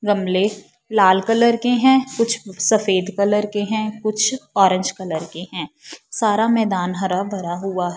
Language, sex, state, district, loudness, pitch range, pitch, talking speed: Hindi, female, Punjab, Fazilka, -19 LUFS, 185-220 Hz, 205 Hz, 160 wpm